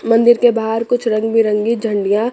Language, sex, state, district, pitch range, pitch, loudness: Hindi, female, Chandigarh, Chandigarh, 220-235 Hz, 225 Hz, -15 LUFS